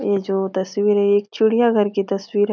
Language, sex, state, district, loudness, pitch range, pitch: Hindi, female, Bihar, Jahanabad, -19 LUFS, 195-210 Hz, 205 Hz